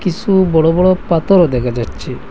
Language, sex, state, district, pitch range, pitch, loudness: Bengali, male, Assam, Hailakandi, 160-185 Hz, 175 Hz, -13 LUFS